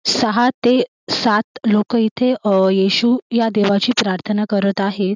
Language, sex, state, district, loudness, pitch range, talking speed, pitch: Marathi, female, Maharashtra, Sindhudurg, -17 LUFS, 200-240 Hz, 130 wpm, 215 Hz